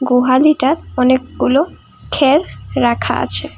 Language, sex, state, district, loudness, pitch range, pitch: Bengali, female, Assam, Kamrup Metropolitan, -15 LUFS, 250-285 Hz, 260 Hz